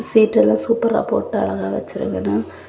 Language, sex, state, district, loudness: Tamil, female, Tamil Nadu, Kanyakumari, -19 LUFS